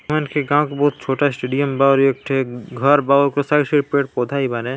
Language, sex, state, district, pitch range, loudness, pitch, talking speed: Chhattisgarhi, male, Chhattisgarh, Balrampur, 135-145 Hz, -18 LUFS, 140 Hz, 215 wpm